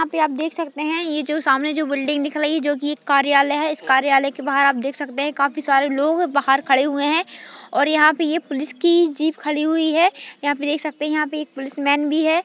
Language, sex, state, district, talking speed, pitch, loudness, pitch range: Hindi, female, Maharashtra, Aurangabad, 260 wpm, 295 Hz, -19 LUFS, 280-310 Hz